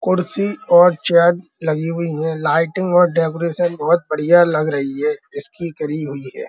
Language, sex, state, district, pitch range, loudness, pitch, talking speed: Hindi, male, Uttar Pradesh, Muzaffarnagar, 155-175 Hz, -17 LUFS, 170 Hz, 165 wpm